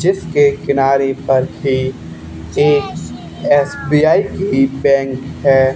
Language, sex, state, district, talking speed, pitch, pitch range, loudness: Hindi, male, Haryana, Charkhi Dadri, 95 wpm, 135 Hz, 130-145 Hz, -15 LUFS